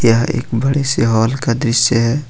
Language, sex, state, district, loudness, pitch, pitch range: Hindi, male, Jharkhand, Ranchi, -15 LUFS, 120 Hz, 115-135 Hz